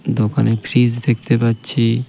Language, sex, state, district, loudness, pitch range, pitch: Bengali, male, West Bengal, Cooch Behar, -17 LUFS, 115-125 Hz, 120 Hz